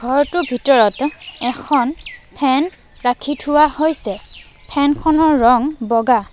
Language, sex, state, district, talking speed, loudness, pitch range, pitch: Assamese, female, Assam, Sonitpur, 105 wpm, -16 LUFS, 245-300 Hz, 280 Hz